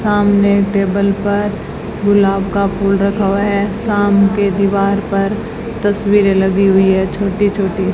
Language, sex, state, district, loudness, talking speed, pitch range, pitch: Hindi, female, Rajasthan, Bikaner, -14 LUFS, 150 wpm, 195-205 Hz, 200 Hz